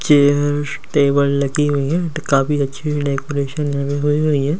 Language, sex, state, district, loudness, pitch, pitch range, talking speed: Hindi, male, Delhi, New Delhi, -18 LUFS, 145 Hz, 140-150 Hz, 170 wpm